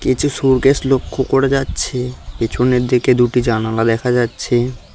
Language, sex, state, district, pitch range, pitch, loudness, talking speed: Bengali, male, West Bengal, Cooch Behar, 115-130 Hz, 125 Hz, -16 LUFS, 120 wpm